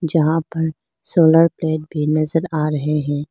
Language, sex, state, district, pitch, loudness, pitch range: Hindi, female, Arunachal Pradesh, Lower Dibang Valley, 160 Hz, -18 LUFS, 150-165 Hz